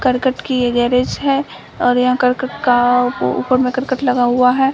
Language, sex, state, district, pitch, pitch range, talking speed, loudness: Hindi, female, Bihar, Samastipur, 250 Hz, 245-260 Hz, 190 wpm, -16 LUFS